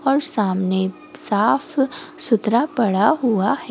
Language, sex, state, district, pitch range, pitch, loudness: Hindi, female, Goa, North and South Goa, 205-270 Hz, 235 Hz, -19 LUFS